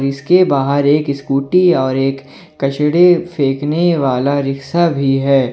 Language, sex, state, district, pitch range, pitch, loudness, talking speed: Hindi, male, Jharkhand, Ranchi, 135-170 Hz, 140 Hz, -14 LUFS, 130 wpm